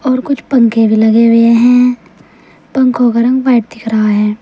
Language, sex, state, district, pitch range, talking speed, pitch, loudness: Hindi, female, Uttar Pradesh, Saharanpur, 225-250 Hz, 190 wpm, 230 Hz, -10 LUFS